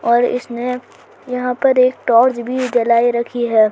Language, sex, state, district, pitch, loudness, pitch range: Hindi, female, Rajasthan, Churu, 245 Hz, -16 LUFS, 235-250 Hz